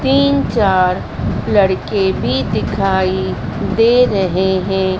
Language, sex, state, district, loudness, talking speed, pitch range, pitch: Hindi, female, Madhya Pradesh, Dhar, -15 LUFS, 95 wpm, 185-210 Hz, 190 Hz